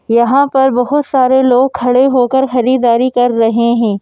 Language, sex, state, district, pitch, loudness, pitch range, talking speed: Hindi, female, Madhya Pradesh, Bhopal, 250 Hz, -11 LUFS, 235-265 Hz, 165 wpm